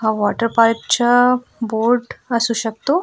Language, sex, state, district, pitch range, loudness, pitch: Marathi, female, Goa, North and South Goa, 225-245 Hz, -17 LUFS, 230 Hz